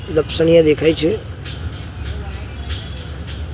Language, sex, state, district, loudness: Gujarati, male, Gujarat, Gandhinagar, -18 LUFS